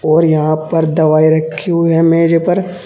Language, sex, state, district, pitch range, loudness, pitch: Hindi, male, Uttar Pradesh, Saharanpur, 155-165 Hz, -12 LUFS, 165 Hz